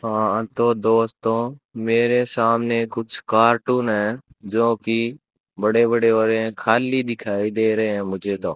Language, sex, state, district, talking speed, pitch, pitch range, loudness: Hindi, male, Rajasthan, Bikaner, 155 wpm, 115 Hz, 110-120 Hz, -20 LUFS